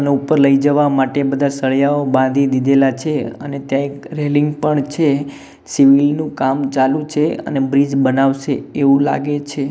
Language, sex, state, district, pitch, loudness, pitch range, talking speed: Gujarati, male, Gujarat, Gandhinagar, 140 Hz, -16 LUFS, 135-145 Hz, 155 wpm